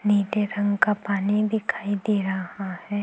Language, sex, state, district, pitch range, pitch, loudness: Hindi, female, Chhattisgarh, Kabirdham, 200-210 Hz, 205 Hz, -24 LUFS